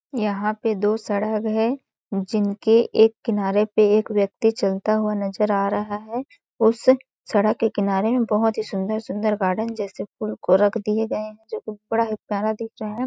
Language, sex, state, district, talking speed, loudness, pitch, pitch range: Hindi, female, Chhattisgarh, Balrampur, 190 wpm, -22 LUFS, 215 Hz, 205-225 Hz